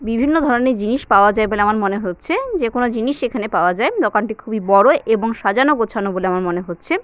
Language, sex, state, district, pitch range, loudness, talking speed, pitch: Bengali, female, West Bengal, Jalpaiguri, 200-250 Hz, -17 LUFS, 195 wpm, 220 Hz